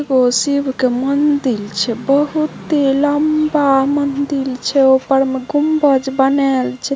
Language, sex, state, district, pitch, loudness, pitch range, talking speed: Maithili, female, Bihar, Samastipur, 275 Hz, -15 LUFS, 265-290 Hz, 120 wpm